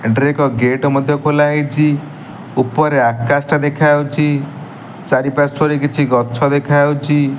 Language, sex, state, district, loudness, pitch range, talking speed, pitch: Odia, male, Odisha, Nuapada, -15 LUFS, 140-150 Hz, 120 wpm, 145 Hz